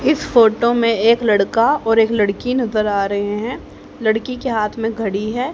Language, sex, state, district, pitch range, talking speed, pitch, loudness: Hindi, female, Haryana, Jhajjar, 215-240 Hz, 195 wpm, 225 Hz, -17 LUFS